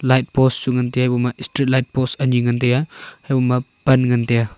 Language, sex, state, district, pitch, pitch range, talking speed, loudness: Wancho, male, Arunachal Pradesh, Longding, 125 Hz, 125-130 Hz, 170 wpm, -18 LUFS